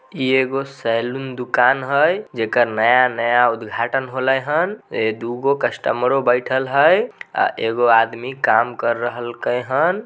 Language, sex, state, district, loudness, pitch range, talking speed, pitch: Maithili, male, Bihar, Samastipur, -18 LUFS, 115-135 Hz, 135 wpm, 125 Hz